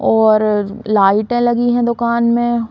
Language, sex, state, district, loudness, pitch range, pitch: Bundeli, female, Uttar Pradesh, Hamirpur, -14 LUFS, 215-240 Hz, 235 Hz